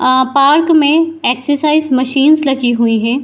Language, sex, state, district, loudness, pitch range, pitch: Hindi, female, Bihar, Saharsa, -12 LUFS, 255-305 Hz, 275 Hz